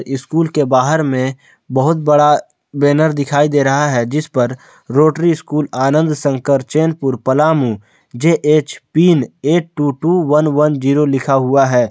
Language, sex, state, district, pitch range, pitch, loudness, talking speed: Hindi, male, Jharkhand, Palamu, 135-155 Hz, 145 Hz, -14 LUFS, 145 wpm